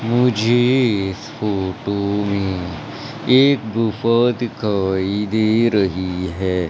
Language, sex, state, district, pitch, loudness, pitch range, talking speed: Hindi, male, Madhya Pradesh, Umaria, 105 Hz, -18 LUFS, 95-115 Hz, 90 wpm